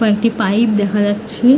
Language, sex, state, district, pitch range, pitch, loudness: Bengali, female, West Bengal, North 24 Parganas, 205-230 Hz, 220 Hz, -15 LUFS